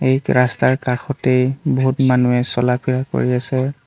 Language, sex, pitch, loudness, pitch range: Assamese, male, 130 Hz, -17 LUFS, 125-130 Hz